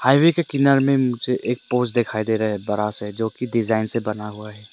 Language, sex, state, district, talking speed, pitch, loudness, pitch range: Hindi, male, Arunachal Pradesh, Lower Dibang Valley, 255 wpm, 115 Hz, -21 LUFS, 105-125 Hz